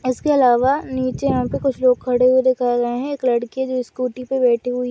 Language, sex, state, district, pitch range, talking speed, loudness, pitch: Hindi, female, Chhattisgarh, Sarguja, 245-260 Hz, 230 wpm, -19 LUFS, 255 Hz